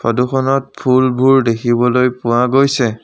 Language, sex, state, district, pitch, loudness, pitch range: Assamese, male, Assam, Sonitpur, 125 Hz, -14 LUFS, 120-130 Hz